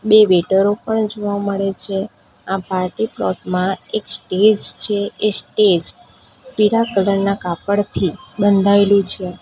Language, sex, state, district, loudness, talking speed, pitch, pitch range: Gujarati, female, Gujarat, Valsad, -17 LUFS, 125 wpm, 200 Hz, 195-210 Hz